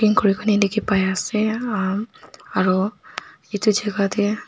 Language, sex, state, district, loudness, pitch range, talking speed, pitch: Nagamese, female, Nagaland, Dimapur, -21 LUFS, 195-215 Hz, 105 wpm, 205 Hz